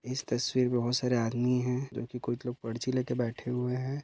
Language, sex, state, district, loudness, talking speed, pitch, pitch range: Hindi, male, Maharashtra, Dhule, -31 LUFS, 240 wpm, 125 Hz, 120-125 Hz